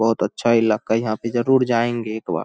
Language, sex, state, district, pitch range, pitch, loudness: Hindi, male, Bihar, Saharsa, 110-120 Hz, 115 Hz, -20 LUFS